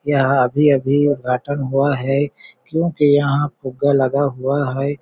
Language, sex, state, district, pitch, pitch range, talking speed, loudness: Hindi, male, Chhattisgarh, Balrampur, 140 Hz, 135-145 Hz, 130 wpm, -18 LUFS